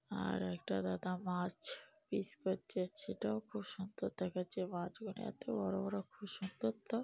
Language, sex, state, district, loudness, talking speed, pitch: Bengali, female, West Bengal, North 24 Parganas, -42 LUFS, 145 wpm, 180 Hz